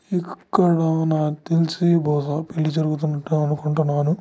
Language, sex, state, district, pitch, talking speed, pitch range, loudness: Telugu, male, Andhra Pradesh, Guntur, 160 Hz, 100 wpm, 150-165 Hz, -21 LUFS